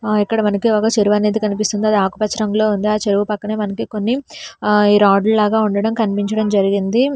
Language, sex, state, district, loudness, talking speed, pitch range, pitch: Telugu, female, Telangana, Hyderabad, -16 LUFS, 165 wpm, 205-215 Hz, 210 Hz